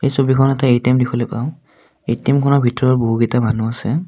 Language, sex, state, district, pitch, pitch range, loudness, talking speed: Assamese, male, Assam, Kamrup Metropolitan, 125 Hz, 120-140 Hz, -16 LUFS, 175 wpm